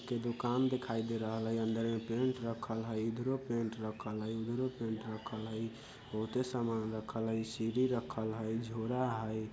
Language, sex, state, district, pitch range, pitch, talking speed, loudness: Bajjika, male, Bihar, Vaishali, 110-120 Hz, 115 Hz, 170 wpm, -37 LUFS